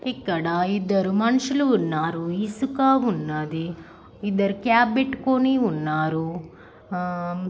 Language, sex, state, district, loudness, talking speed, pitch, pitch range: Telugu, female, Andhra Pradesh, Srikakulam, -23 LUFS, 90 wpm, 195 Hz, 170-240 Hz